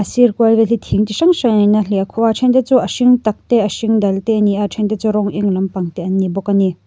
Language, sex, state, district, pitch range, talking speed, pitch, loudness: Mizo, female, Mizoram, Aizawl, 200-230 Hz, 340 wpm, 210 Hz, -15 LUFS